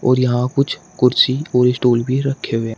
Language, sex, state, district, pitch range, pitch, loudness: Hindi, male, Uttar Pradesh, Shamli, 125-135 Hz, 125 Hz, -17 LUFS